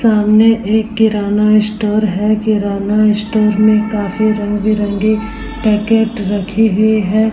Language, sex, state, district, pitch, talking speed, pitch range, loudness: Hindi, female, Bihar, Vaishali, 215 Hz, 140 wpm, 210-220 Hz, -13 LUFS